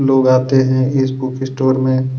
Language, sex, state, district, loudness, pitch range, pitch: Hindi, male, Chhattisgarh, Kabirdham, -15 LUFS, 130-135 Hz, 130 Hz